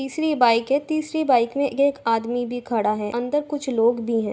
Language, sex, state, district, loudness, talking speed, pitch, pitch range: Hindi, female, Uttar Pradesh, Jalaun, -22 LUFS, 195 wpm, 245 Hz, 230-285 Hz